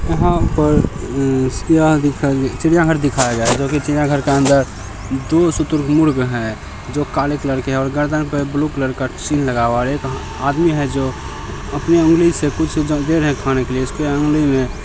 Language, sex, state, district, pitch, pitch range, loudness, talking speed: Maithili, male, Bihar, Samastipur, 140 Hz, 130-150 Hz, -16 LUFS, 180 wpm